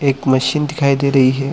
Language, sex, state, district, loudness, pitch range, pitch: Hindi, male, Chhattisgarh, Bilaspur, -15 LUFS, 130-140 Hz, 140 Hz